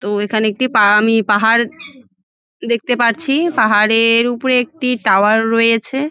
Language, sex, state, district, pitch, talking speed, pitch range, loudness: Bengali, female, West Bengal, Jalpaiguri, 230 Hz, 125 wpm, 215-255 Hz, -14 LUFS